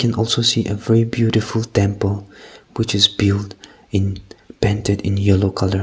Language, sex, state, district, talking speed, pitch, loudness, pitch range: English, male, Nagaland, Kohima, 155 wpm, 100 Hz, -18 LUFS, 100-115 Hz